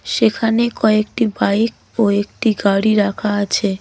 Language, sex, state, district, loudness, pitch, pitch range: Bengali, female, West Bengal, Cooch Behar, -17 LUFS, 215 Hz, 200-225 Hz